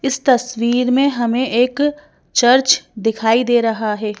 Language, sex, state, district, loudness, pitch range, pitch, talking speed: Hindi, female, Madhya Pradesh, Bhopal, -16 LUFS, 225-265 Hz, 245 Hz, 145 wpm